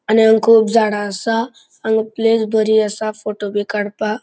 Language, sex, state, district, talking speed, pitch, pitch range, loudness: Konkani, male, Goa, North and South Goa, 155 wpm, 220 Hz, 210-225 Hz, -16 LUFS